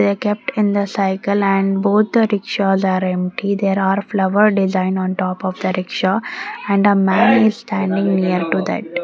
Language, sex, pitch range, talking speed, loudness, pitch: English, female, 190-205 Hz, 180 wpm, -17 LUFS, 195 Hz